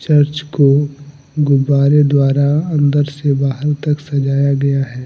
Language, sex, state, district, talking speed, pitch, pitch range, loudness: Hindi, male, Jharkhand, Deoghar, 130 wpm, 145 Hz, 140-150 Hz, -14 LUFS